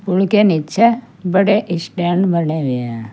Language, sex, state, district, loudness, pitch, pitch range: Hindi, female, Uttar Pradesh, Saharanpur, -16 LUFS, 180 Hz, 160-200 Hz